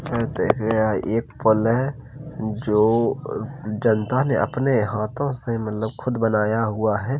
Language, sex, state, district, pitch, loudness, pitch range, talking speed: Hindi, male, Uttar Pradesh, Jalaun, 115 Hz, -22 LUFS, 110-125 Hz, 140 wpm